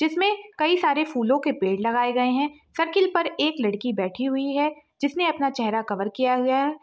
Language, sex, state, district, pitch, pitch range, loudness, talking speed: Hindi, female, Bihar, Saharsa, 280 Hz, 245-310 Hz, -24 LUFS, 200 wpm